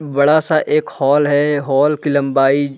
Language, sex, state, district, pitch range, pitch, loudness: Hindi, male, Uttar Pradesh, Varanasi, 140-150 Hz, 145 Hz, -15 LUFS